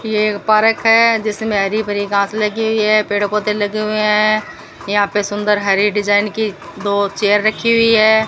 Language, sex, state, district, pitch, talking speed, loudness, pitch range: Hindi, female, Rajasthan, Bikaner, 210 Hz, 195 wpm, -15 LUFS, 205-220 Hz